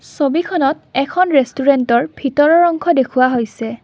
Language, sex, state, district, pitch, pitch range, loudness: Assamese, female, Assam, Kamrup Metropolitan, 275 Hz, 255-320 Hz, -15 LUFS